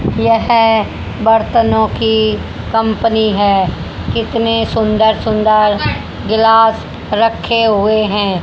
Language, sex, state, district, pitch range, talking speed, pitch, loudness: Hindi, female, Haryana, Charkhi Dadri, 215-225 Hz, 85 wpm, 220 Hz, -13 LUFS